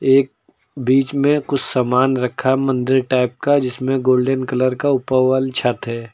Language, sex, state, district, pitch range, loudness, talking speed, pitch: Hindi, male, Uttar Pradesh, Lucknow, 125-135 Hz, -17 LUFS, 165 wpm, 130 Hz